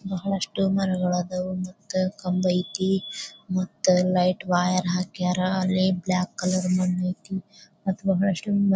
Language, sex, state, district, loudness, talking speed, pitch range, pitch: Kannada, female, Karnataka, Bijapur, -25 LUFS, 105 wpm, 180-190 Hz, 185 Hz